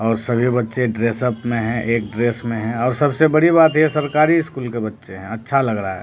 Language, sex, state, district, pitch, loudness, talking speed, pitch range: Hindi, male, Bihar, Katihar, 120 Hz, -18 LUFS, 240 wpm, 115-145 Hz